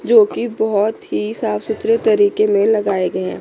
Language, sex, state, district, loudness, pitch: Hindi, female, Chandigarh, Chandigarh, -17 LUFS, 220 Hz